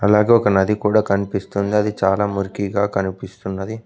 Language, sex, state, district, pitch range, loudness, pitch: Telugu, male, Telangana, Mahabubabad, 95-105 Hz, -19 LUFS, 100 Hz